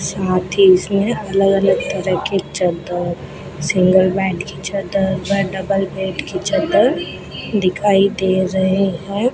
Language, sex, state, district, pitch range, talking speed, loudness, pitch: Hindi, female, Rajasthan, Bikaner, 185-195 Hz, 130 wpm, -17 LUFS, 190 Hz